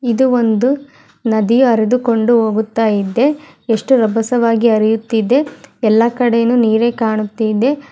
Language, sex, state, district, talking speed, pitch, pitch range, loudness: Kannada, female, Karnataka, Mysore, 55 wpm, 230 Hz, 220-245 Hz, -14 LUFS